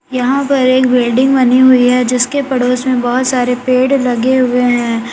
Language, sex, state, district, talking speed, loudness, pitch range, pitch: Hindi, female, Uttar Pradesh, Lalitpur, 185 wpm, -12 LUFS, 245-260 Hz, 255 Hz